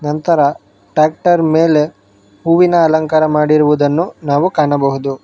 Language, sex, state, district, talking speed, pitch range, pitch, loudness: Kannada, male, Karnataka, Bangalore, 80 wpm, 145-165 Hz, 150 Hz, -13 LUFS